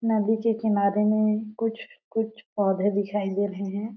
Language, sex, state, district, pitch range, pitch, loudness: Hindi, female, Chhattisgarh, Sarguja, 200-220 Hz, 215 Hz, -25 LUFS